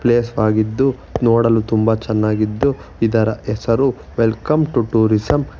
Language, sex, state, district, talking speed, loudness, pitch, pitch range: Kannada, male, Karnataka, Bangalore, 105 wpm, -17 LUFS, 115 Hz, 110-120 Hz